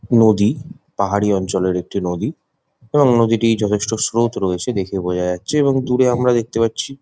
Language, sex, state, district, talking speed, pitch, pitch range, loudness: Bengali, male, West Bengal, Jhargram, 155 wpm, 115 Hz, 100-125 Hz, -18 LUFS